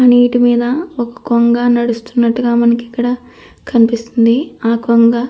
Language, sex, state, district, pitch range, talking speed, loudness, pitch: Telugu, female, Andhra Pradesh, Anantapur, 235-245 Hz, 115 wpm, -13 LUFS, 240 Hz